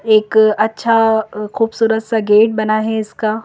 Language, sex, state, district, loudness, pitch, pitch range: Hindi, female, Madhya Pradesh, Bhopal, -15 LUFS, 220 Hz, 215-225 Hz